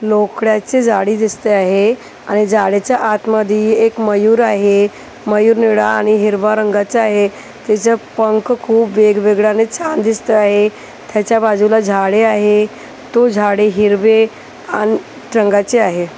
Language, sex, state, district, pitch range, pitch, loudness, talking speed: Marathi, female, Maharashtra, Gondia, 210-225 Hz, 215 Hz, -13 LUFS, 120 wpm